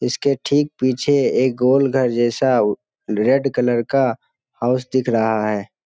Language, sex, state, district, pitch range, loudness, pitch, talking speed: Hindi, male, Bihar, Jamui, 120-135 Hz, -18 LUFS, 125 Hz, 155 wpm